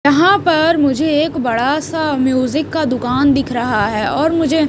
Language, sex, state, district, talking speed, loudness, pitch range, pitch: Hindi, female, Himachal Pradesh, Shimla, 180 wpm, -15 LUFS, 260-315 Hz, 295 Hz